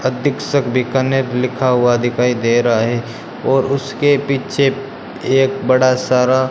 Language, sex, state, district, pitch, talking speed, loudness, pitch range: Hindi, male, Rajasthan, Bikaner, 130 Hz, 140 wpm, -16 LUFS, 125-135 Hz